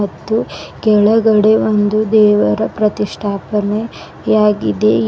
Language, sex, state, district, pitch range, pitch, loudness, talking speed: Kannada, female, Karnataka, Bidar, 135-215 Hz, 210 Hz, -14 LUFS, 70 wpm